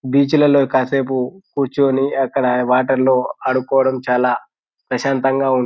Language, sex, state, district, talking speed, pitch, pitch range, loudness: Telugu, male, Telangana, Nalgonda, 115 wpm, 130 Hz, 130-135 Hz, -17 LUFS